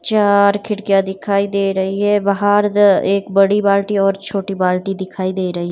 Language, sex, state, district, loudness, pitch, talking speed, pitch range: Hindi, female, Himachal Pradesh, Shimla, -16 LUFS, 200 Hz, 180 wpm, 195-205 Hz